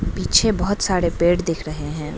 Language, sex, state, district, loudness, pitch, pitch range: Hindi, female, Arunachal Pradesh, Lower Dibang Valley, -20 LUFS, 175 Hz, 155-190 Hz